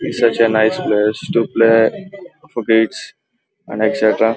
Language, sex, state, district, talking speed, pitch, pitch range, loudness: Telugu, male, Andhra Pradesh, Guntur, 125 wpm, 115 Hz, 110-115 Hz, -15 LUFS